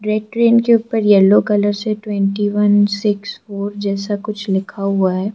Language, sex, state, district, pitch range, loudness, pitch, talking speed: Hindi, female, Arunachal Pradesh, Lower Dibang Valley, 200-215 Hz, -16 LUFS, 205 Hz, 180 wpm